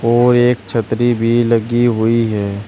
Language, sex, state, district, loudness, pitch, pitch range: Hindi, male, Uttar Pradesh, Shamli, -14 LUFS, 115 Hz, 110-120 Hz